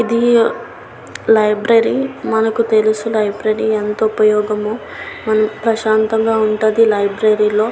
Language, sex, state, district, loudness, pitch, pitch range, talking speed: Telugu, female, Andhra Pradesh, Visakhapatnam, -15 LUFS, 220 Hz, 215-225 Hz, 95 wpm